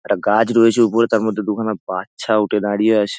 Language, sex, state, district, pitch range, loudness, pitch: Bengali, male, West Bengal, Dakshin Dinajpur, 105-115 Hz, -17 LUFS, 110 Hz